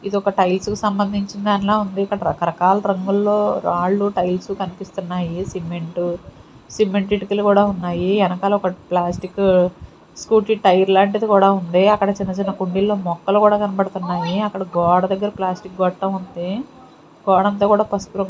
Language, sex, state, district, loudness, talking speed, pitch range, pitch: Telugu, female, Andhra Pradesh, Sri Satya Sai, -19 LUFS, 145 wpm, 185-205 Hz, 195 Hz